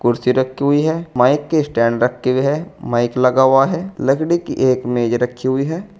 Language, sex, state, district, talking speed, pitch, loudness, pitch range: Hindi, male, Uttar Pradesh, Saharanpur, 210 wpm, 130 Hz, -17 LUFS, 125-155 Hz